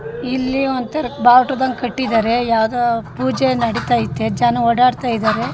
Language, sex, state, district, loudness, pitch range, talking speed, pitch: Kannada, female, Karnataka, Shimoga, -17 LUFS, 235-255 Hz, 120 wpm, 245 Hz